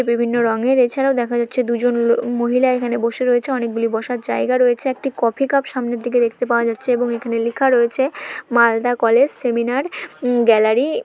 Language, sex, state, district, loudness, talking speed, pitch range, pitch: Bengali, female, West Bengal, Malda, -18 LUFS, 175 wpm, 235-255 Hz, 245 Hz